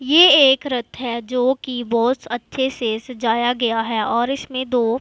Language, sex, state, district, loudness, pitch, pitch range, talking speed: Hindi, female, Punjab, Pathankot, -18 LUFS, 245 Hz, 235-260 Hz, 165 wpm